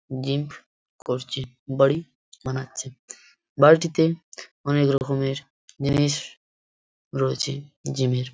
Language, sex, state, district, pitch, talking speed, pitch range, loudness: Bengali, male, West Bengal, Purulia, 135 Hz, 85 wpm, 130-145 Hz, -24 LUFS